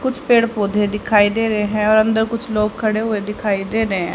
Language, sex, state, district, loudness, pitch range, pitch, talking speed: Hindi, female, Haryana, Charkhi Dadri, -17 LUFS, 210-225 Hz, 215 Hz, 230 wpm